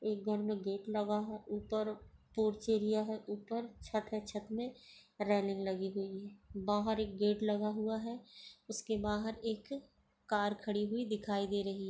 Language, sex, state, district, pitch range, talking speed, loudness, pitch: Hindi, female, Bihar, Begusarai, 205-220 Hz, 170 wpm, -38 LUFS, 210 Hz